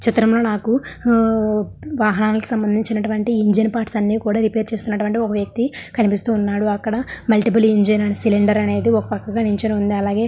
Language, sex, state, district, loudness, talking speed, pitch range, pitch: Telugu, female, Andhra Pradesh, Srikakulam, -18 LUFS, 150 wpm, 210-225 Hz, 220 Hz